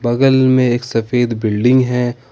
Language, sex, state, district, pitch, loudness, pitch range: Hindi, male, Jharkhand, Ranchi, 125 Hz, -14 LUFS, 120-130 Hz